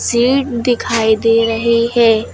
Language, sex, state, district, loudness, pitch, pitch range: Hindi, female, Uttar Pradesh, Lucknow, -14 LUFS, 235 Hz, 225-240 Hz